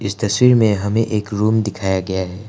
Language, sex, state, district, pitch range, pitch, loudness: Hindi, male, Assam, Kamrup Metropolitan, 95-110 Hz, 105 Hz, -17 LUFS